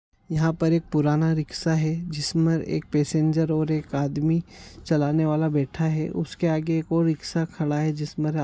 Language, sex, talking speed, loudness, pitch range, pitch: Konkani, male, 185 wpm, -24 LUFS, 150-165 Hz, 155 Hz